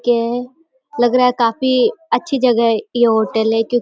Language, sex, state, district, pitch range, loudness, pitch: Hindi, female, Uttar Pradesh, Deoria, 230-260 Hz, -16 LUFS, 245 Hz